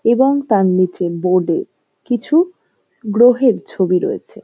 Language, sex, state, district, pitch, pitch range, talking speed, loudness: Bengali, female, West Bengal, North 24 Parganas, 225 Hz, 185-270 Hz, 120 wpm, -16 LUFS